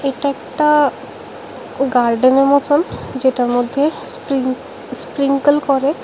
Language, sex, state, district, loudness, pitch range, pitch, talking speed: Bengali, female, Tripura, West Tripura, -16 LUFS, 260-290 Hz, 275 Hz, 90 wpm